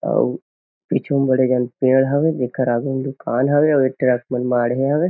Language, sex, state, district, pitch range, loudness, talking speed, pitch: Chhattisgarhi, male, Chhattisgarh, Kabirdham, 125-140 Hz, -18 LUFS, 210 wpm, 130 Hz